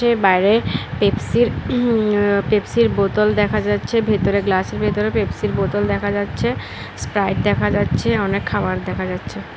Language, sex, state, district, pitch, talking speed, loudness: Bengali, female, Tripura, West Tripura, 205 Hz, 130 wpm, -18 LUFS